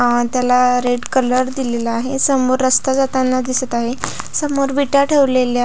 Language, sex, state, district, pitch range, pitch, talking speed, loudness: Marathi, female, Maharashtra, Pune, 245-270 Hz, 255 Hz, 150 wpm, -16 LUFS